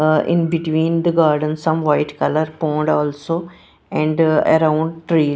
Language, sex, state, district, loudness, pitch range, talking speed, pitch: English, female, Punjab, Pathankot, -18 LUFS, 155-165 Hz, 145 wpm, 155 Hz